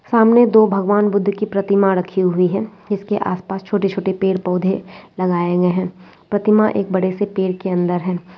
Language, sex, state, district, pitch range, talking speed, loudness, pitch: Hindi, female, West Bengal, Kolkata, 185-205 Hz, 180 wpm, -17 LUFS, 195 Hz